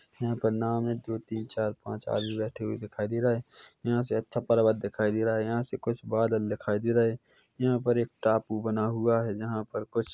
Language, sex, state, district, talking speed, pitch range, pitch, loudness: Hindi, male, Chhattisgarh, Korba, 235 wpm, 110-115 Hz, 110 Hz, -29 LUFS